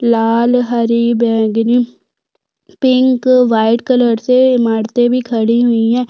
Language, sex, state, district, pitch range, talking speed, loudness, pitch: Hindi, female, Chhattisgarh, Sukma, 230-250 Hz, 120 wpm, -12 LUFS, 240 Hz